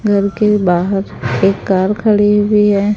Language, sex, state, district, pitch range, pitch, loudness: Hindi, female, Haryana, Charkhi Dadri, 195-210 Hz, 205 Hz, -13 LUFS